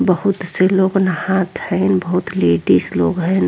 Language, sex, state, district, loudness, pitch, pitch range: Bhojpuri, female, Uttar Pradesh, Ghazipur, -16 LUFS, 185 Hz, 180-190 Hz